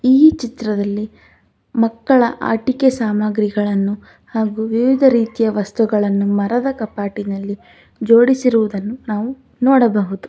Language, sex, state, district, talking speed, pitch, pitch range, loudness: Kannada, female, Karnataka, Bangalore, 80 wpm, 220 Hz, 205-245 Hz, -17 LUFS